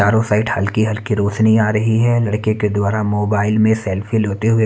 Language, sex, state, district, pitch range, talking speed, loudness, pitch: Hindi, male, Haryana, Charkhi Dadri, 105-110 Hz, 205 wpm, -16 LUFS, 110 Hz